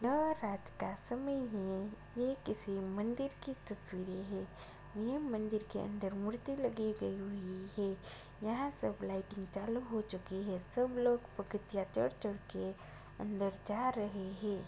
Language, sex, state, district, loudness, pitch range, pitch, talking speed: Hindi, female, Bihar, Lakhisarai, -40 LUFS, 190-235 Hz, 205 Hz, 145 wpm